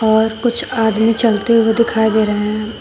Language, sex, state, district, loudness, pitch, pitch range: Hindi, female, Uttar Pradesh, Shamli, -15 LUFS, 220 Hz, 220-230 Hz